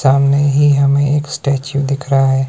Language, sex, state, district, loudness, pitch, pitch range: Hindi, male, Himachal Pradesh, Shimla, -14 LUFS, 140 Hz, 135-140 Hz